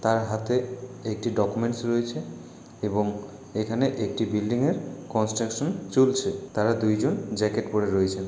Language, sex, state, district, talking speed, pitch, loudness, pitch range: Bengali, male, West Bengal, Malda, 125 wpm, 110 Hz, -26 LUFS, 105-125 Hz